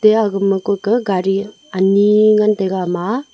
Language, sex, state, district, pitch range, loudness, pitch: Wancho, female, Arunachal Pradesh, Longding, 190-215 Hz, -15 LUFS, 200 Hz